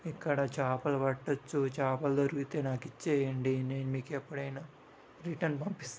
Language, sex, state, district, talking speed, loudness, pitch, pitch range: Telugu, male, Telangana, Karimnagar, 120 wpm, -34 LUFS, 140 Hz, 135-150 Hz